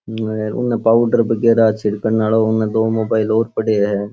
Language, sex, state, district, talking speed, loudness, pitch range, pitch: Rajasthani, male, Rajasthan, Churu, 145 wpm, -16 LUFS, 110-115 Hz, 110 Hz